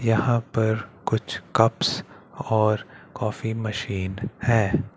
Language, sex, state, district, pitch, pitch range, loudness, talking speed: Hindi, male, Chandigarh, Chandigarh, 110 Hz, 105-115 Hz, -24 LUFS, 95 wpm